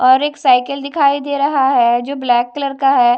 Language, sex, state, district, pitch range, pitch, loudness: Hindi, female, Odisha, Malkangiri, 255-285 Hz, 280 Hz, -15 LUFS